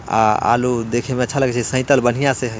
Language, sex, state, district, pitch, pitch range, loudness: Bhojpuri, male, Bihar, Muzaffarpur, 125 Hz, 120-130 Hz, -18 LUFS